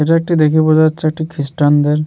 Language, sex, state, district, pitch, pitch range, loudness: Bengali, male, West Bengal, Jalpaiguri, 155 Hz, 150-160 Hz, -13 LUFS